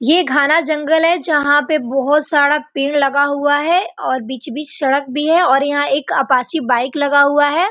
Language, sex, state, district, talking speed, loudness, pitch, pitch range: Hindi, female, Bihar, Gopalganj, 200 wpm, -15 LUFS, 290 Hz, 275-310 Hz